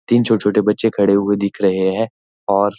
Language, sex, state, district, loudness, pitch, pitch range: Hindi, male, Uttarakhand, Uttarkashi, -17 LUFS, 100 Hz, 100-110 Hz